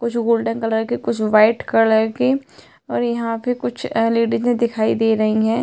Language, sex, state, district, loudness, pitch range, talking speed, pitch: Hindi, female, Uttarakhand, Tehri Garhwal, -18 LUFS, 220-235 Hz, 180 wpm, 225 Hz